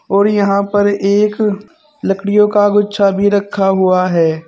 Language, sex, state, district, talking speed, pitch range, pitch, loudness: Hindi, female, Uttar Pradesh, Saharanpur, 145 wpm, 195-205 Hz, 205 Hz, -13 LUFS